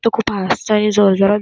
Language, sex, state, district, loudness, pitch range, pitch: Marathi, female, Maharashtra, Solapur, -15 LUFS, 195-215 Hz, 210 Hz